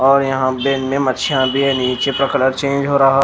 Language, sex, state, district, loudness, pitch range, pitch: Hindi, male, Chhattisgarh, Raipur, -16 LUFS, 130-140 Hz, 135 Hz